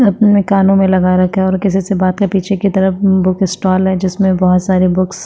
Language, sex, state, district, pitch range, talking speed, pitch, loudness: Hindi, female, Maharashtra, Chandrapur, 185-195 Hz, 230 wpm, 190 Hz, -12 LUFS